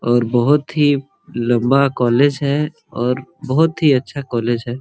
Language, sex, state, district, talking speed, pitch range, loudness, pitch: Hindi, male, Jharkhand, Sahebganj, 150 wpm, 120-145 Hz, -17 LUFS, 135 Hz